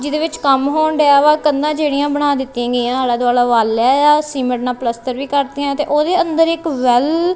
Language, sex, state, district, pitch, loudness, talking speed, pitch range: Punjabi, female, Punjab, Kapurthala, 285 Hz, -15 LUFS, 205 wpm, 250-300 Hz